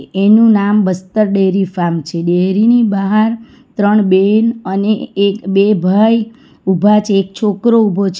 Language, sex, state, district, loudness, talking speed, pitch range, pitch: Gujarati, female, Gujarat, Valsad, -12 LUFS, 155 wpm, 190-215 Hz, 205 Hz